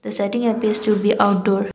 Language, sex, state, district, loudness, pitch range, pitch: English, female, Assam, Kamrup Metropolitan, -19 LUFS, 200-215 Hz, 205 Hz